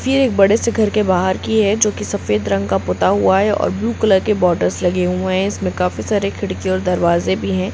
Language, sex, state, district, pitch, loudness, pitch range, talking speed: Hindi, female, Bihar, Gopalganj, 190 Hz, -16 LUFS, 180-210 Hz, 255 wpm